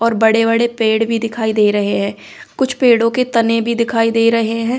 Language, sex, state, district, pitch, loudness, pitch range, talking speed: Hindi, female, Delhi, New Delhi, 230 Hz, -15 LUFS, 225-235 Hz, 210 wpm